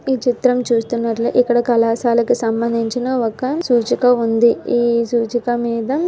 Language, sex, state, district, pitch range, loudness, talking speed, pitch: Telugu, female, Andhra Pradesh, Visakhapatnam, 230-250 Hz, -17 LUFS, 130 wpm, 235 Hz